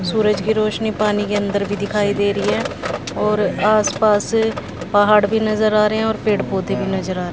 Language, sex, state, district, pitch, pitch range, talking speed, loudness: Hindi, female, Haryana, Jhajjar, 210 Hz, 200-215 Hz, 215 wpm, -18 LUFS